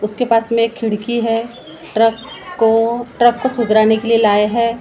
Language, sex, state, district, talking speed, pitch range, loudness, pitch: Hindi, female, Maharashtra, Gondia, 185 wpm, 225-235 Hz, -15 LUFS, 230 Hz